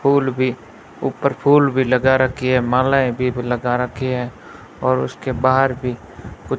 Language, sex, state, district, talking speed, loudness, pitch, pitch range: Hindi, male, Rajasthan, Bikaner, 175 wpm, -18 LUFS, 130 Hz, 125-130 Hz